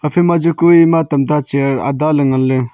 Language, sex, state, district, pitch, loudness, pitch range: Wancho, male, Arunachal Pradesh, Longding, 150 Hz, -13 LUFS, 135-165 Hz